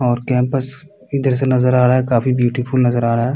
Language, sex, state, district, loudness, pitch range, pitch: Hindi, male, Bihar, Kishanganj, -16 LUFS, 120-130 Hz, 125 Hz